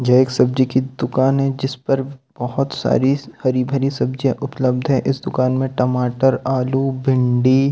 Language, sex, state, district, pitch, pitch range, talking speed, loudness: Hindi, male, Delhi, New Delhi, 130 Hz, 130-135 Hz, 150 wpm, -18 LUFS